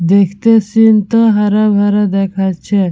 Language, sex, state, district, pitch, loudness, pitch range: Bengali, female, West Bengal, Purulia, 205 Hz, -11 LUFS, 195-215 Hz